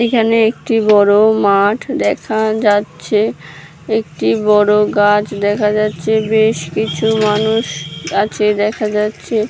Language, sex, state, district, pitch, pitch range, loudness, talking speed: Bengali, female, West Bengal, Purulia, 210 Hz, 205-220 Hz, -14 LUFS, 80 wpm